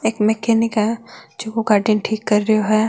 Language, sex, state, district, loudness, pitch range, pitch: Marwari, female, Rajasthan, Nagaur, -18 LUFS, 215-225 Hz, 220 Hz